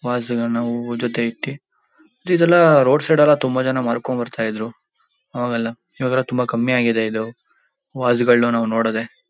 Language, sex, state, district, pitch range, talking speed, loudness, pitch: Kannada, male, Karnataka, Shimoga, 115-130 Hz, 155 wpm, -19 LUFS, 120 Hz